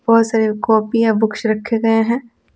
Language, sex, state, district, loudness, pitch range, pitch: Hindi, female, Bihar, Patna, -16 LUFS, 220-230 Hz, 225 Hz